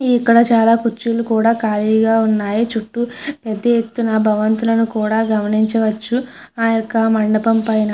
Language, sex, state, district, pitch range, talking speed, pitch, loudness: Telugu, female, Andhra Pradesh, Chittoor, 220-230 Hz, 120 wpm, 225 Hz, -16 LUFS